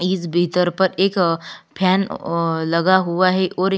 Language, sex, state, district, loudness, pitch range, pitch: Hindi, female, Chhattisgarh, Kabirdham, -18 LUFS, 170-185 Hz, 180 Hz